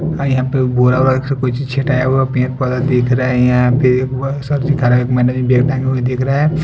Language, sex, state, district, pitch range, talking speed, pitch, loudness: Hindi, male, Punjab, Fazilka, 125-135 Hz, 170 wpm, 130 Hz, -14 LUFS